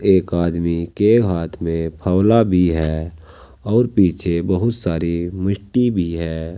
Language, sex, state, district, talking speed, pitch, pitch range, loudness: Hindi, male, Uttar Pradesh, Saharanpur, 135 wpm, 85 Hz, 85-100 Hz, -18 LUFS